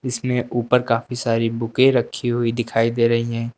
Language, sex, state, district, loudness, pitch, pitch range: Hindi, male, Uttar Pradesh, Lucknow, -20 LUFS, 120 Hz, 115-125 Hz